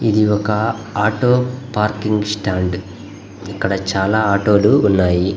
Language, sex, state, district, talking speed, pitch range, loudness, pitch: Telugu, male, Andhra Pradesh, Guntur, 125 wpm, 95-110 Hz, -17 LUFS, 105 Hz